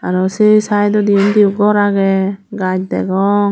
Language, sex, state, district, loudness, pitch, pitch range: Chakma, female, Tripura, Dhalai, -13 LUFS, 200 Hz, 195-210 Hz